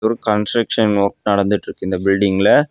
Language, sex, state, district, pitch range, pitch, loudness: Tamil, male, Tamil Nadu, Kanyakumari, 100-110 Hz, 105 Hz, -17 LUFS